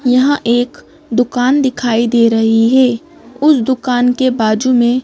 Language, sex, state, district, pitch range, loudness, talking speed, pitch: Hindi, female, Madhya Pradesh, Bhopal, 235-260 Hz, -13 LUFS, 145 wpm, 250 Hz